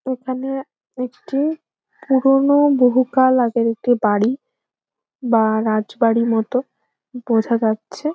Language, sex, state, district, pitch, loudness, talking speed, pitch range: Bengali, female, West Bengal, Jhargram, 250 Hz, -18 LUFS, 95 wpm, 225-265 Hz